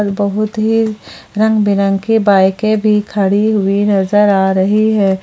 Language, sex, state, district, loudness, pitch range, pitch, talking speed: Hindi, female, Jharkhand, Palamu, -13 LUFS, 195-215 Hz, 205 Hz, 135 wpm